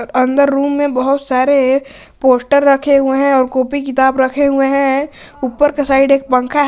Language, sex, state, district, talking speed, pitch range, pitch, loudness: Hindi, male, Jharkhand, Garhwa, 195 wpm, 265-280 Hz, 275 Hz, -13 LUFS